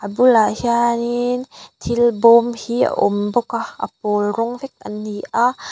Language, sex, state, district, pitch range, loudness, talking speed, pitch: Mizo, female, Mizoram, Aizawl, 210-240 Hz, -18 LUFS, 180 wpm, 235 Hz